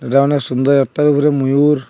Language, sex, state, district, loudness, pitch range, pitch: Bengali, male, Assam, Hailakandi, -14 LUFS, 135-145 Hz, 140 Hz